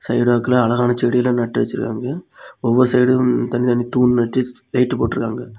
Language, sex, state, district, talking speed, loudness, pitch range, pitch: Tamil, male, Tamil Nadu, Kanyakumari, 150 wpm, -18 LUFS, 120-125 Hz, 125 Hz